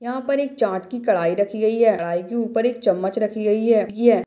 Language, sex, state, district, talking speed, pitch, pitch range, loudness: Hindi, male, Bihar, Purnia, 255 wpm, 220 Hz, 205-235 Hz, -21 LUFS